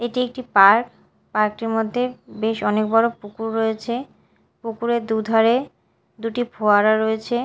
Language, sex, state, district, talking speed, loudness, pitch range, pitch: Bengali, female, Odisha, Malkangiri, 130 wpm, -20 LUFS, 220-240 Hz, 225 Hz